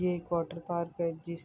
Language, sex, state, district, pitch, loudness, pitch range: Urdu, female, Andhra Pradesh, Anantapur, 170 Hz, -34 LUFS, 170-175 Hz